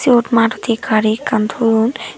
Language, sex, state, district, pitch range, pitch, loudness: Chakma, female, Tripura, Dhalai, 220-230 Hz, 225 Hz, -15 LUFS